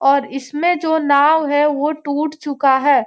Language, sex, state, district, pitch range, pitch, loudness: Hindi, female, Bihar, Gopalganj, 280-310 Hz, 290 Hz, -16 LUFS